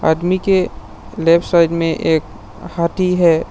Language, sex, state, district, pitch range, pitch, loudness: Hindi, male, Assam, Sonitpur, 155-175 Hz, 165 Hz, -16 LUFS